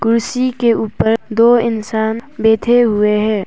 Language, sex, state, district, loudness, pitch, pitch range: Hindi, female, Arunachal Pradesh, Papum Pare, -14 LUFS, 225 Hz, 220-235 Hz